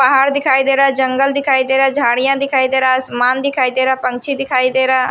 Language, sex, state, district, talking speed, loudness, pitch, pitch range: Hindi, female, Odisha, Sambalpur, 295 wpm, -14 LUFS, 265 Hz, 260-275 Hz